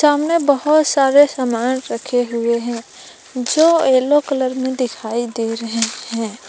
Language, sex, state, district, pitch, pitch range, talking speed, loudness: Hindi, female, Jharkhand, Palamu, 255 Hz, 235-285 Hz, 140 wpm, -17 LUFS